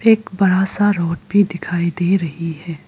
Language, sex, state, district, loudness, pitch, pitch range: Hindi, female, Arunachal Pradesh, Lower Dibang Valley, -18 LUFS, 180 Hz, 170-200 Hz